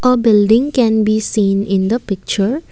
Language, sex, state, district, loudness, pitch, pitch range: English, female, Assam, Kamrup Metropolitan, -14 LUFS, 215 Hz, 200-245 Hz